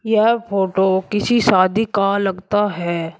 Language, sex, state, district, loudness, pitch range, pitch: Hindi, male, Uttar Pradesh, Shamli, -17 LUFS, 190-215 Hz, 200 Hz